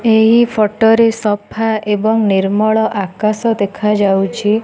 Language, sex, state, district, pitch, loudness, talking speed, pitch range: Odia, female, Odisha, Nuapada, 215 Hz, -14 LUFS, 90 wpm, 205-225 Hz